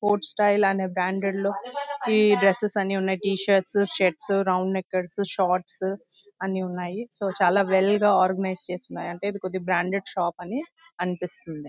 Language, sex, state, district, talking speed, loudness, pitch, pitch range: Telugu, female, Andhra Pradesh, Visakhapatnam, 145 wpm, -25 LUFS, 195 Hz, 185-205 Hz